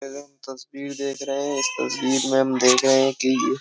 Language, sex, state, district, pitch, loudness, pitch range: Hindi, male, Uttar Pradesh, Jyotiba Phule Nagar, 135 Hz, -21 LUFS, 135-140 Hz